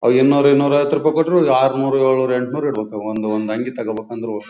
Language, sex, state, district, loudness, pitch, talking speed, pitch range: Kannada, male, Karnataka, Bellary, -17 LUFS, 130 Hz, 240 wpm, 110-140 Hz